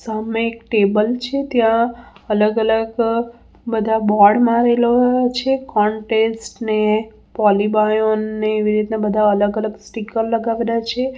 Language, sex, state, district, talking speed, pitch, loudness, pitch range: Gujarati, female, Gujarat, Valsad, 120 wpm, 220 Hz, -17 LUFS, 215-235 Hz